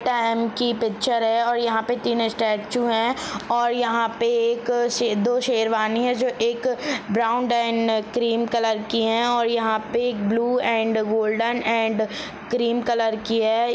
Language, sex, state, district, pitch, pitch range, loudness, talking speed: Hindi, female, Jharkhand, Jamtara, 230 Hz, 225-240 Hz, -22 LUFS, 165 wpm